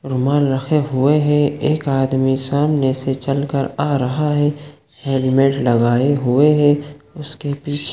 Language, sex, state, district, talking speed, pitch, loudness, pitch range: Hindi, male, Chhattisgarh, Sukma, 145 wpm, 140 Hz, -17 LUFS, 135-145 Hz